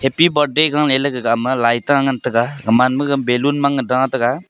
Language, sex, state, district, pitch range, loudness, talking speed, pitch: Wancho, male, Arunachal Pradesh, Longding, 125-145 Hz, -16 LUFS, 200 wpm, 135 Hz